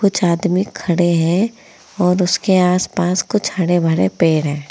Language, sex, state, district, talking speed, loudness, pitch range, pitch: Hindi, female, Uttar Pradesh, Saharanpur, 165 wpm, -16 LUFS, 170-190 Hz, 180 Hz